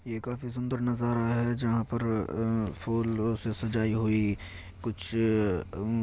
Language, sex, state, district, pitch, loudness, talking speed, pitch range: Hindi, male, Uttar Pradesh, Jyotiba Phule Nagar, 115 Hz, -29 LUFS, 140 wpm, 110-115 Hz